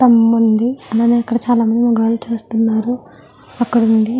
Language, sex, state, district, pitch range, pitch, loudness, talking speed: Telugu, female, Andhra Pradesh, Guntur, 225-240 Hz, 230 Hz, -15 LUFS, 145 wpm